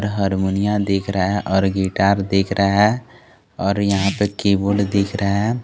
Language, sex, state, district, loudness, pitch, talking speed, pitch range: Hindi, male, Jharkhand, Garhwa, -19 LUFS, 100 Hz, 170 wpm, 95-100 Hz